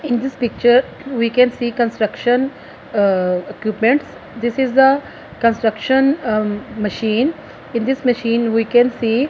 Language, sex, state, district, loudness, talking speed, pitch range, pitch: English, female, Punjab, Fazilka, -17 LUFS, 135 wpm, 220-260 Hz, 240 Hz